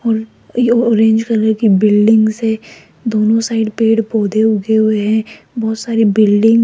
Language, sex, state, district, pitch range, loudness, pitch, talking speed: Hindi, female, Rajasthan, Jaipur, 215-225 Hz, -13 LUFS, 220 Hz, 160 wpm